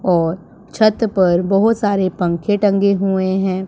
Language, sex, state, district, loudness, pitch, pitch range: Hindi, female, Punjab, Pathankot, -16 LUFS, 195 Hz, 185-205 Hz